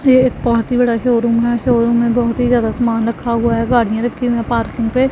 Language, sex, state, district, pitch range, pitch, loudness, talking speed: Hindi, female, Punjab, Pathankot, 230-245 Hz, 235 Hz, -15 LUFS, 255 wpm